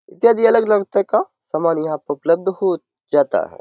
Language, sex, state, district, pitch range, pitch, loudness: Hindi, male, Bihar, Saharsa, 165-215 Hz, 195 Hz, -18 LUFS